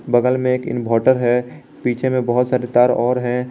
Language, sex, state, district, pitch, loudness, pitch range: Hindi, male, Jharkhand, Garhwa, 125 Hz, -18 LUFS, 120-125 Hz